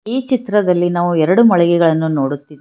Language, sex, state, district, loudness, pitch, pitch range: Kannada, female, Karnataka, Bangalore, -14 LUFS, 175 Hz, 160-210 Hz